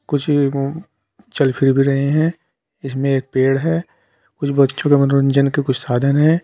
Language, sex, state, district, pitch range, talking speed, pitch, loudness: Hindi, male, Uttar Pradesh, Saharanpur, 135-150 Hz, 170 wpm, 140 Hz, -17 LUFS